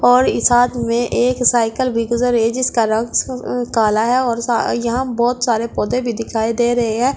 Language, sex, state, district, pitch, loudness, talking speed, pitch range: Hindi, female, Delhi, New Delhi, 240 Hz, -17 LUFS, 210 wpm, 230-245 Hz